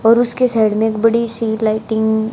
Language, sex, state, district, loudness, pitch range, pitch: Hindi, female, Haryana, Charkhi Dadri, -15 LUFS, 220-230 Hz, 225 Hz